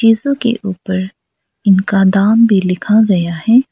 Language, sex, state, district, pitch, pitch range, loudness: Hindi, female, Arunachal Pradesh, Lower Dibang Valley, 205 Hz, 190-225 Hz, -13 LUFS